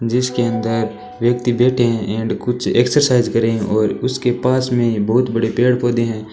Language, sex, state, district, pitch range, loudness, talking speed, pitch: Hindi, male, Rajasthan, Churu, 115-125 Hz, -17 LUFS, 190 wpm, 120 Hz